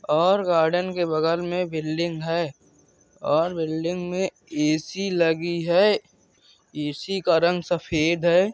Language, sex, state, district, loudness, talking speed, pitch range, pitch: Hindi, male, Andhra Pradesh, Krishna, -23 LUFS, 125 wpm, 160-180 Hz, 170 Hz